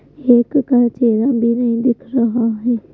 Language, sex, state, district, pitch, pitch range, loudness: Hindi, female, Madhya Pradesh, Bhopal, 240 Hz, 235-250 Hz, -15 LUFS